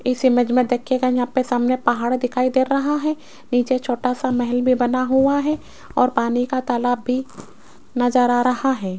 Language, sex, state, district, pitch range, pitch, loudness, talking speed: Hindi, female, Rajasthan, Jaipur, 245-260 Hz, 250 Hz, -20 LUFS, 195 wpm